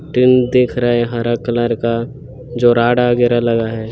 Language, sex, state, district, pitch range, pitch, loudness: Hindi, male, Chhattisgarh, Bilaspur, 120-125 Hz, 120 Hz, -15 LUFS